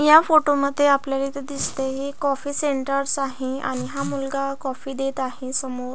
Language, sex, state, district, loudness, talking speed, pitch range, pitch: Marathi, female, Maharashtra, Aurangabad, -23 LUFS, 180 wpm, 265-280 Hz, 275 Hz